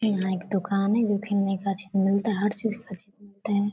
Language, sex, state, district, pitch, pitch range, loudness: Hindi, female, Bihar, Darbhanga, 200 Hz, 195-210 Hz, -26 LUFS